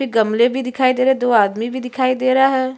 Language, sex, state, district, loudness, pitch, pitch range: Hindi, female, Chhattisgarh, Sukma, -16 LUFS, 255 Hz, 240-260 Hz